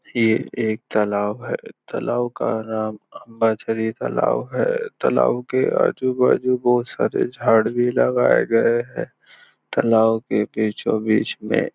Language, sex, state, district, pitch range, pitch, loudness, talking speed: Hindi, male, Maharashtra, Nagpur, 110-130 Hz, 115 Hz, -20 LUFS, 135 wpm